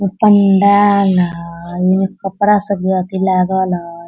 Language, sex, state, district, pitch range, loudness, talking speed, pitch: Hindi, female, Bihar, Sitamarhi, 180-200 Hz, -13 LUFS, 120 wpm, 190 Hz